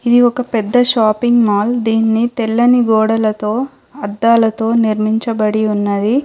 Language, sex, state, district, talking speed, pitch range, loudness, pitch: Telugu, female, Telangana, Hyderabad, 105 wpm, 215-240 Hz, -14 LUFS, 225 Hz